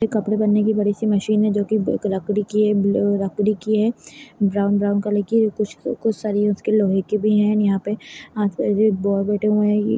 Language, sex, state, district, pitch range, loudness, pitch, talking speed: Kumaoni, female, Uttarakhand, Uttarkashi, 205-215 Hz, -20 LUFS, 210 Hz, 210 wpm